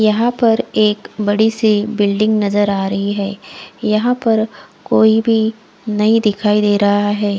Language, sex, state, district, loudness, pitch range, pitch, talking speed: Hindi, female, Odisha, Khordha, -15 LUFS, 205-220 Hz, 210 Hz, 155 wpm